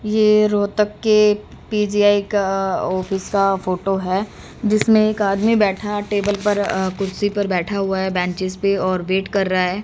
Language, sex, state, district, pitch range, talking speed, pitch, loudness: Hindi, female, Haryana, Rohtak, 190-210 Hz, 170 wpm, 200 Hz, -19 LUFS